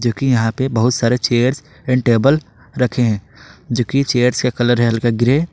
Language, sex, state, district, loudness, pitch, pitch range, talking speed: Hindi, male, Jharkhand, Ranchi, -16 LUFS, 120 Hz, 115-130 Hz, 195 wpm